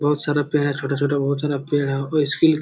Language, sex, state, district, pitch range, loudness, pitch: Hindi, male, Bihar, Jamui, 140-150 Hz, -21 LUFS, 145 Hz